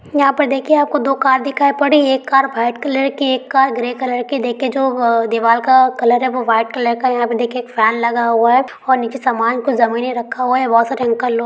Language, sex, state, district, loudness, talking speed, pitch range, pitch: Hindi, female, Bihar, Gaya, -15 LUFS, 260 wpm, 235-270 Hz, 255 Hz